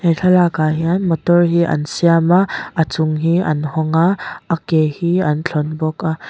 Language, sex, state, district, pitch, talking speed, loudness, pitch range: Mizo, female, Mizoram, Aizawl, 165 Hz, 190 wpm, -16 LUFS, 155-175 Hz